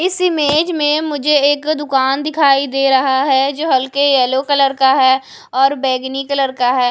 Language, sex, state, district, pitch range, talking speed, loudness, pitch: Hindi, female, Odisha, Khordha, 265-295 Hz, 180 wpm, -14 LUFS, 275 Hz